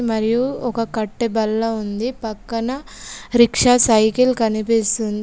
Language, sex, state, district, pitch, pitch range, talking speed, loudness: Telugu, female, Telangana, Komaram Bheem, 225 Hz, 220-245 Hz, 105 wpm, -18 LUFS